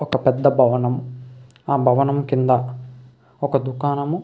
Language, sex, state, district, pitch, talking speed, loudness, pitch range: Telugu, male, Andhra Pradesh, Krishna, 130 Hz, 115 wpm, -19 LUFS, 125-140 Hz